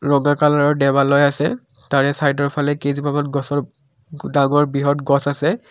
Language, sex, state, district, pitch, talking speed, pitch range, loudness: Assamese, male, Assam, Kamrup Metropolitan, 140 Hz, 135 wpm, 140-145 Hz, -18 LUFS